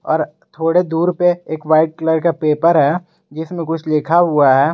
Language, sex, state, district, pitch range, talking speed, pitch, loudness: Hindi, male, Jharkhand, Garhwa, 155-170 Hz, 190 wpm, 165 Hz, -16 LUFS